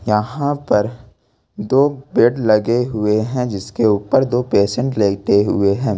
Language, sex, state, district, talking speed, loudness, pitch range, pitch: Hindi, male, Jharkhand, Ranchi, 140 wpm, -17 LUFS, 105-125 Hz, 115 Hz